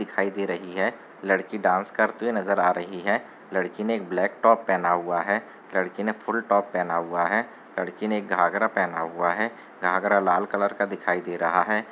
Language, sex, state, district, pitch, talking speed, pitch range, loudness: Hindi, male, Chhattisgarh, Sarguja, 95 Hz, 210 wpm, 90-105 Hz, -25 LUFS